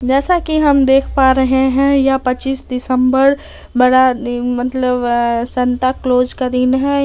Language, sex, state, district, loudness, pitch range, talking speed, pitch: Hindi, female, Bihar, Darbhanga, -14 LUFS, 250-270 Hz, 155 wpm, 260 Hz